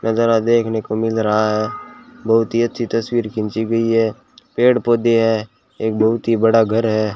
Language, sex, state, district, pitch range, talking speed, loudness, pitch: Hindi, male, Rajasthan, Bikaner, 110-115 Hz, 185 wpm, -17 LUFS, 115 Hz